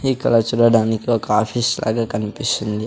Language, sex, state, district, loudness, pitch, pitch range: Telugu, male, Andhra Pradesh, Sri Satya Sai, -18 LUFS, 115 Hz, 110-120 Hz